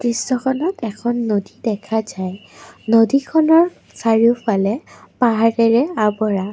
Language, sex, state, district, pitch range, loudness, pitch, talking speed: Assamese, female, Assam, Kamrup Metropolitan, 215-250 Hz, -18 LUFS, 230 Hz, 85 wpm